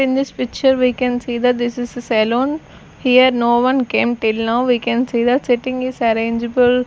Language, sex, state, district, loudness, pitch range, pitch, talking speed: English, female, Chandigarh, Chandigarh, -17 LUFS, 235-255 Hz, 245 Hz, 185 wpm